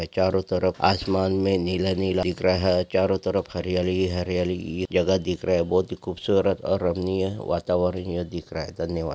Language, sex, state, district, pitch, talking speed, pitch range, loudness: Hindi, male, Maharashtra, Pune, 90 Hz, 190 wpm, 90-95 Hz, -24 LUFS